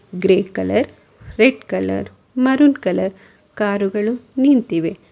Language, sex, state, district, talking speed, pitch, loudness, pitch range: Kannada, female, Karnataka, Bangalore, 105 wpm, 205 Hz, -18 LUFS, 180-255 Hz